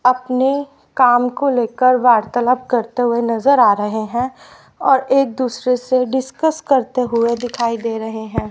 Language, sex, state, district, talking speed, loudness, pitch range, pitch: Hindi, male, Haryana, Charkhi Dadri, 155 wpm, -17 LUFS, 235-260 Hz, 250 Hz